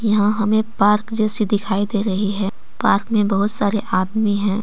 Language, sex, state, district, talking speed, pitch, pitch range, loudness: Hindi, female, Jharkhand, Deoghar, 180 wpm, 210 Hz, 200-215 Hz, -18 LUFS